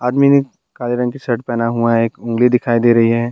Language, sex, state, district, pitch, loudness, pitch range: Hindi, male, Bihar, Bhagalpur, 120 Hz, -15 LUFS, 115-125 Hz